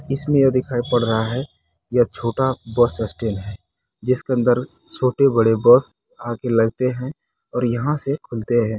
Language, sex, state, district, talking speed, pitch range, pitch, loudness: Hindi, male, Bihar, Muzaffarpur, 170 wpm, 115-130 Hz, 120 Hz, -20 LUFS